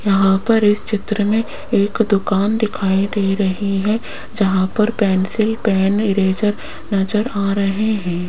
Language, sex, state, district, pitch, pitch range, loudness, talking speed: Hindi, female, Rajasthan, Jaipur, 205 Hz, 195-215 Hz, -17 LUFS, 145 wpm